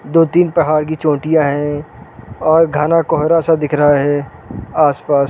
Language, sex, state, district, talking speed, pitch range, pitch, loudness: Hindi, male, Uttarakhand, Uttarkashi, 145 wpm, 145-160 Hz, 150 Hz, -14 LUFS